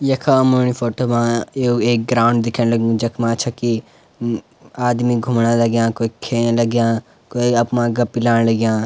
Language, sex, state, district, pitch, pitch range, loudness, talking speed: Garhwali, male, Uttarakhand, Uttarkashi, 120 Hz, 115-120 Hz, -17 LUFS, 150 wpm